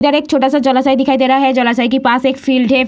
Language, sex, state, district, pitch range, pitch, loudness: Hindi, female, Bihar, Samastipur, 255-270 Hz, 265 Hz, -12 LUFS